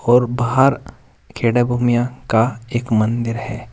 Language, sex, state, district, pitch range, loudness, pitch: Hindi, male, Uttar Pradesh, Saharanpur, 115-125 Hz, -18 LUFS, 120 Hz